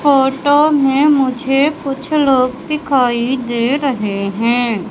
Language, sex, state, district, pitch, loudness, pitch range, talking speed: Hindi, female, Madhya Pradesh, Katni, 270 Hz, -14 LUFS, 245-285 Hz, 110 wpm